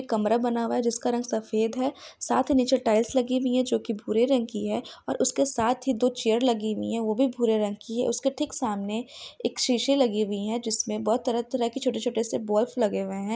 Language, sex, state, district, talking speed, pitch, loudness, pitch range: Hindi, female, Jharkhand, Sahebganj, 240 wpm, 235 Hz, -26 LUFS, 220-255 Hz